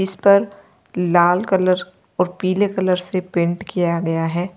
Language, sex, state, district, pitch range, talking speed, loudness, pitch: Hindi, female, Uttar Pradesh, Lalitpur, 175-190 Hz, 155 wpm, -18 LUFS, 180 Hz